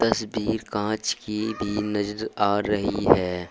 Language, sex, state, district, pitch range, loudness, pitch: Hindi, male, Uttar Pradesh, Saharanpur, 100-110 Hz, -25 LUFS, 105 Hz